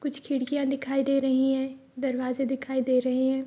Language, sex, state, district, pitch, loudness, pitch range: Hindi, female, Bihar, Araria, 265 Hz, -27 LUFS, 260-275 Hz